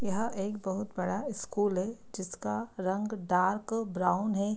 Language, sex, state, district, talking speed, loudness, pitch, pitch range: Hindi, female, Bihar, Darbhanga, 145 wpm, -32 LUFS, 200 Hz, 185-215 Hz